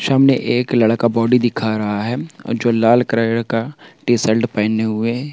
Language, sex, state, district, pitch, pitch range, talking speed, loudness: Hindi, male, Chhattisgarh, Jashpur, 115 Hz, 115-125 Hz, 180 wpm, -17 LUFS